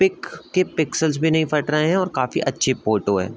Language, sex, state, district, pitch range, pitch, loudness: Hindi, male, Uttar Pradesh, Budaun, 125-180 Hz, 155 Hz, -21 LUFS